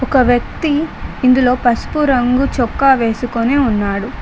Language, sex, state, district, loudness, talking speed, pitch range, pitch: Telugu, female, Telangana, Mahabubabad, -15 LUFS, 115 wpm, 240-270 Hz, 255 Hz